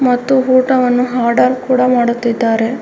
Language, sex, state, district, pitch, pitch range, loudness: Kannada, female, Karnataka, Mysore, 250 Hz, 235-255 Hz, -13 LUFS